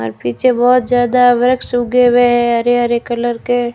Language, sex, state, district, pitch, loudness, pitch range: Hindi, female, Rajasthan, Jaisalmer, 245 Hz, -13 LUFS, 240-245 Hz